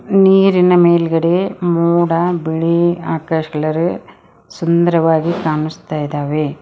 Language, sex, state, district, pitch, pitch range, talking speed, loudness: Kannada, female, Karnataka, Koppal, 170 Hz, 160-175 Hz, 80 wpm, -15 LUFS